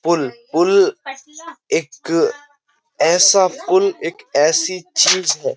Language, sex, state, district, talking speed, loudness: Hindi, male, Uttar Pradesh, Jyotiba Phule Nagar, 95 wpm, -16 LUFS